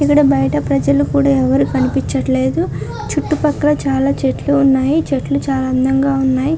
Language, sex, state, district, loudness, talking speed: Telugu, female, Andhra Pradesh, Chittoor, -15 LUFS, 130 wpm